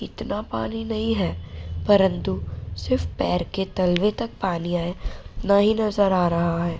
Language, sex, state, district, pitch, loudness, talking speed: Hindi, female, Bihar, Araria, 175 Hz, -23 LUFS, 160 wpm